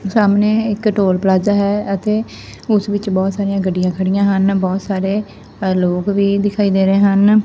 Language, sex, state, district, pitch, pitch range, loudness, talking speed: Punjabi, male, Punjab, Fazilka, 200 Hz, 190-205 Hz, -16 LUFS, 170 wpm